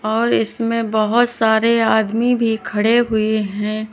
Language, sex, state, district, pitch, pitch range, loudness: Hindi, female, Uttar Pradesh, Lalitpur, 220 Hz, 215-230 Hz, -17 LUFS